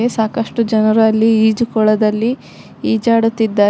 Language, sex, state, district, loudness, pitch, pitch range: Kannada, female, Karnataka, Koppal, -14 LUFS, 225 Hz, 220-230 Hz